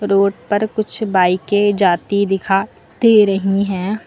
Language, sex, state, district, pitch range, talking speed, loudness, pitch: Hindi, female, Uttar Pradesh, Lucknow, 195-210 Hz, 130 wpm, -16 LUFS, 200 Hz